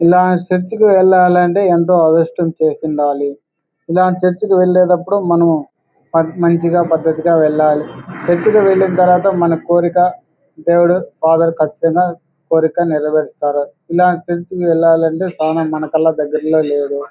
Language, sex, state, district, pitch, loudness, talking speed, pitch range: Telugu, male, Andhra Pradesh, Anantapur, 170 Hz, -13 LUFS, 115 wpm, 160-180 Hz